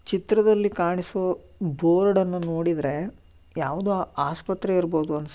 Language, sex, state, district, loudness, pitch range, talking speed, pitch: Kannada, male, Karnataka, Shimoga, -24 LUFS, 155-190 Hz, 100 wpm, 180 Hz